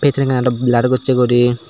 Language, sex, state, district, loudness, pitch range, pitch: Chakma, male, Tripura, Dhalai, -15 LUFS, 120-130 Hz, 125 Hz